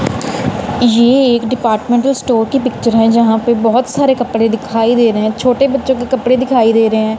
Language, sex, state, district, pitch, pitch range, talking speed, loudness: Hindi, female, Punjab, Kapurthala, 240 Hz, 225-255 Hz, 200 wpm, -12 LUFS